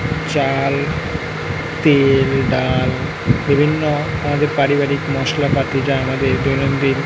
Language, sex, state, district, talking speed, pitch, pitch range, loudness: Bengali, male, West Bengal, North 24 Parganas, 95 wpm, 140 Hz, 135-150 Hz, -17 LUFS